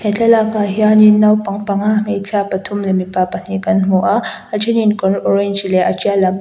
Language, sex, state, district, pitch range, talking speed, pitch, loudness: Mizo, female, Mizoram, Aizawl, 195-215 Hz, 205 wpm, 205 Hz, -14 LUFS